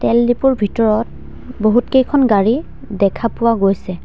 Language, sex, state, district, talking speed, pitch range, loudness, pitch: Assamese, female, Assam, Sonitpur, 135 wpm, 205-245 Hz, -15 LUFS, 230 Hz